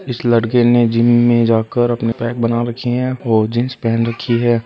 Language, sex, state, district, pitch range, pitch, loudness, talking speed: Hindi, male, Rajasthan, Churu, 115-120 Hz, 120 Hz, -15 LUFS, 205 wpm